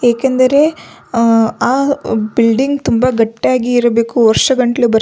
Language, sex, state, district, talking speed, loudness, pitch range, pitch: Kannada, female, Karnataka, Belgaum, 95 wpm, -13 LUFS, 230-260 Hz, 240 Hz